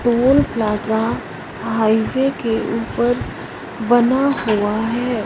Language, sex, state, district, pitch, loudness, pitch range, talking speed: Hindi, female, Punjab, Fazilka, 230 Hz, -18 LUFS, 220-245 Hz, 90 wpm